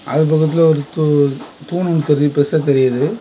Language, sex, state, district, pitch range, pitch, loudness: Tamil, male, Tamil Nadu, Kanyakumari, 145-155 Hz, 150 Hz, -15 LUFS